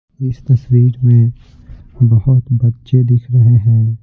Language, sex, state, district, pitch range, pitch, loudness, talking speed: Hindi, male, Bihar, Patna, 120-125 Hz, 120 Hz, -12 LUFS, 120 wpm